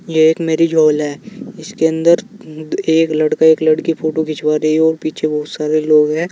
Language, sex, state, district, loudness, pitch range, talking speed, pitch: Hindi, male, Uttar Pradesh, Saharanpur, -15 LUFS, 155-160 Hz, 200 wpm, 155 Hz